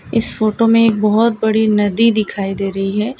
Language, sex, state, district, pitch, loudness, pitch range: Hindi, female, Gujarat, Valsad, 220 Hz, -15 LUFS, 205-230 Hz